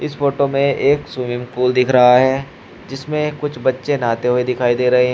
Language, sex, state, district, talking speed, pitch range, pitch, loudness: Hindi, male, Uttar Pradesh, Shamli, 210 wpm, 125-140 Hz, 130 Hz, -16 LUFS